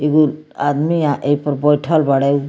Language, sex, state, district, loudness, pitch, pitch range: Bhojpuri, female, Bihar, Muzaffarpur, -16 LUFS, 145 Hz, 145-155 Hz